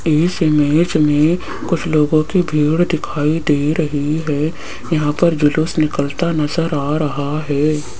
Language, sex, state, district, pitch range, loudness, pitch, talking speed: Hindi, female, Rajasthan, Jaipur, 150-165 Hz, -16 LUFS, 155 Hz, 145 wpm